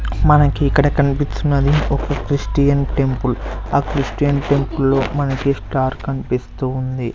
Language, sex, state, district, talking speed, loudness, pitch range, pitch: Telugu, male, Andhra Pradesh, Sri Satya Sai, 115 wpm, -18 LUFS, 130-145 Hz, 140 Hz